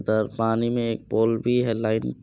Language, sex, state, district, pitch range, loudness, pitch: Maithili, male, Bihar, Supaul, 110-115 Hz, -24 LUFS, 115 Hz